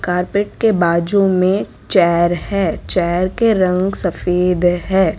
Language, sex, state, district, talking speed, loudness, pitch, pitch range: Hindi, female, Gujarat, Valsad, 125 wpm, -16 LUFS, 185 Hz, 175-195 Hz